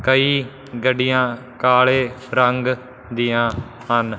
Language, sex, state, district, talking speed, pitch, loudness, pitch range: Punjabi, male, Punjab, Fazilka, 85 wpm, 125 Hz, -19 LUFS, 120-130 Hz